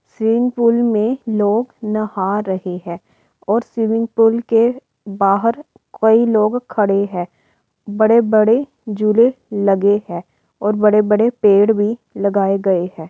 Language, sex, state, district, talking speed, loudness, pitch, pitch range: Hindi, female, Uttar Pradesh, Varanasi, 125 wpm, -16 LUFS, 215 Hz, 200-230 Hz